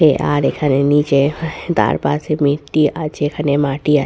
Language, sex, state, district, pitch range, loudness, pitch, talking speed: Bengali, female, West Bengal, Purulia, 140-150 Hz, -16 LUFS, 145 Hz, 160 wpm